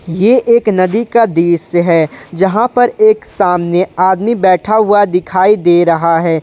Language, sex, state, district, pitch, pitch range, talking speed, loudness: Hindi, male, Jharkhand, Ranchi, 185 Hz, 175-220 Hz, 160 wpm, -11 LUFS